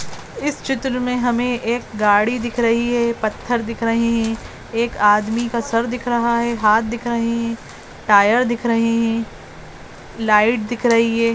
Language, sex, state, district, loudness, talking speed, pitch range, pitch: Hindi, female, Uttarakhand, Tehri Garhwal, -18 LUFS, 170 wpm, 225-240 Hz, 230 Hz